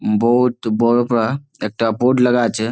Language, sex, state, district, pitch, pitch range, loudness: Bengali, male, West Bengal, Malda, 120 Hz, 110-125 Hz, -17 LUFS